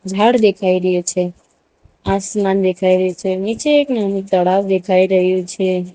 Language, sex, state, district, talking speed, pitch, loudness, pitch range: Gujarati, female, Gujarat, Valsad, 150 wpm, 190 Hz, -16 LUFS, 185-200 Hz